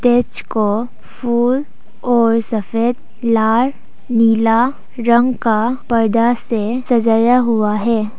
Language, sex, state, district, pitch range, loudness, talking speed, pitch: Hindi, female, Arunachal Pradesh, Papum Pare, 225-245 Hz, -16 LUFS, 105 wpm, 230 Hz